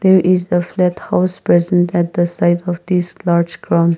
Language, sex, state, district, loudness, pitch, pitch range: English, male, Nagaland, Kohima, -16 LUFS, 175 Hz, 175-180 Hz